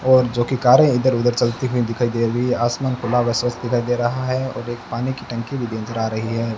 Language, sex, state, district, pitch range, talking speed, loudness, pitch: Hindi, male, Rajasthan, Bikaner, 120-130 Hz, 275 wpm, -20 LUFS, 120 Hz